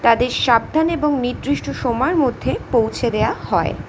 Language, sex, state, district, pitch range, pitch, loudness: Bengali, female, West Bengal, North 24 Parganas, 245-305 Hz, 265 Hz, -19 LUFS